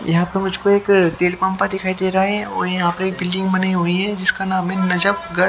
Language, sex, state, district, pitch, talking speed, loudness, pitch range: Hindi, male, Haryana, Jhajjar, 190 Hz, 250 wpm, -17 LUFS, 180-195 Hz